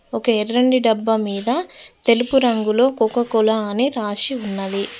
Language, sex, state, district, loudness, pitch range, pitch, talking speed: Telugu, female, Telangana, Mahabubabad, -17 LUFS, 215-245 Hz, 225 Hz, 120 wpm